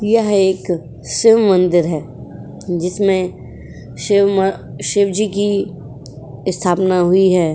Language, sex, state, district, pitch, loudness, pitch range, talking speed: Hindi, female, Uttar Pradesh, Jyotiba Phule Nagar, 185 Hz, -16 LUFS, 165-200 Hz, 105 wpm